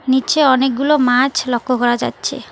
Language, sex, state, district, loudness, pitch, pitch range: Bengali, female, West Bengal, Alipurduar, -15 LUFS, 260 Hz, 250-270 Hz